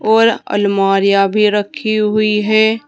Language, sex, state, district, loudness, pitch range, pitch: Hindi, female, Uttar Pradesh, Saharanpur, -14 LUFS, 200-220 Hz, 210 Hz